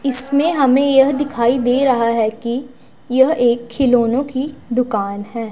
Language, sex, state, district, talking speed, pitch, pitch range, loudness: Hindi, female, Punjab, Pathankot, 150 wpm, 250 Hz, 235-270 Hz, -16 LUFS